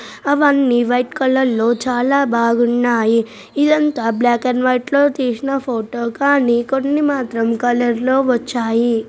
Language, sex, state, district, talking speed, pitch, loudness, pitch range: Telugu, female, Telangana, Nalgonda, 140 wpm, 245 Hz, -16 LUFS, 235-275 Hz